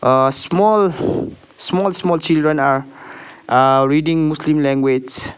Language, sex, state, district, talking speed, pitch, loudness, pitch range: English, male, Sikkim, Gangtok, 110 wpm, 150 Hz, -16 LUFS, 135-170 Hz